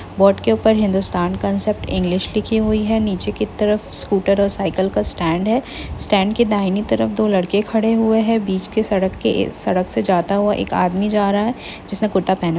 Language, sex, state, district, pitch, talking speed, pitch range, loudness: Hindi, female, Chhattisgarh, Rajnandgaon, 200 Hz, 195 wpm, 190-215 Hz, -18 LUFS